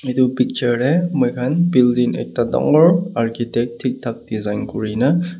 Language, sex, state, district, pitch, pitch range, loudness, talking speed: Nagamese, male, Nagaland, Kohima, 125 Hz, 120-155 Hz, -18 LUFS, 145 wpm